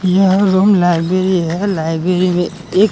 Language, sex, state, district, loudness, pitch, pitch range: Hindi, male, Gujarat, Gandhinagar, -14 LUFS, 185 Hz, 175-190 Hz